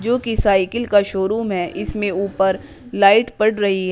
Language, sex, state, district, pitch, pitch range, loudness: Hindi, female, Uttar Pradesh, Shamli, 200 Hz, 190-220 Hz, -18 LUFS